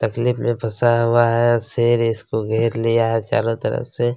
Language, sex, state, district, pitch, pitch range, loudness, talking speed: Hindi, male, Chhattisgarh, Kabirdham, 115 Hz, 115-120 Hz, -19 LUFS, 200 wpm